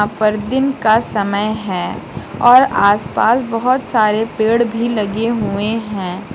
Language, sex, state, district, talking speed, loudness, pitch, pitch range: Hindi, female, Uttar Pradesh, Lucknow, 130 wpm, -15 LUFS, 220 Hz, 205-235 Hz